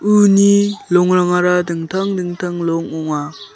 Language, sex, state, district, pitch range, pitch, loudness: Garo, male, Meghalaya, South Garo Hills, 170-195 Hz, 180 Hz, -15 LUFS